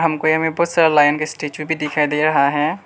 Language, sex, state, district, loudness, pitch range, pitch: Hindi, male, Arunachal Pradesh, Lower Dibang Valley, -17 LUFS, 150-160 Hz, 155 Hz